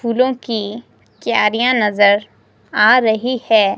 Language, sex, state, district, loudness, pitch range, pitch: Hindi, female, Himachal Pradesh, Shimla, -15 LUFS, 210-245 Hz, 225 Hz